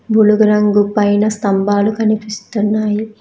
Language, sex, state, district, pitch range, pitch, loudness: Telugu, female, Telangana, Hyderabad, 205-215 Hz, 210 Hz, -14 LUFS